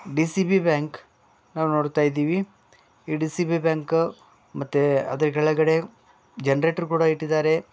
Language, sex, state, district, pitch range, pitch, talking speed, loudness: Kannada, male, Karnataka, Bellary, 145-165 Hz, 155 Hz, 100 wpm, -23 LUFS